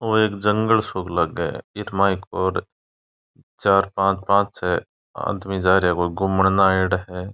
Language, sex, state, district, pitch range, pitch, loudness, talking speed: Rajasthani, male, Rajasthan, Churu, 90-100 Hz, 95 Hz, -21 LUFS, 180 wpm